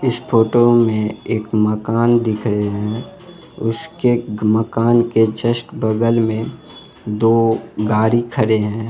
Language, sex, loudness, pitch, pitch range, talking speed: Bhojpuri, male, -17 LUFS, 115 Hz, 110-120 Hz, 120 wpm